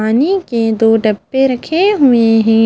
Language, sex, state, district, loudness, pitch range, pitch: Hindi, female, Haryana, Charkhi Dadri, -12 LUFS, 225-275 Hz, 230 Hz